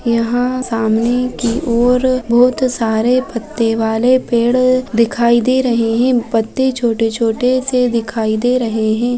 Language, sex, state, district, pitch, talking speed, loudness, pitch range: Hindi, female, Bihar, Lakhisarai, 240 Hz, 130 wpm, -15 LUFS, 230-255 Hz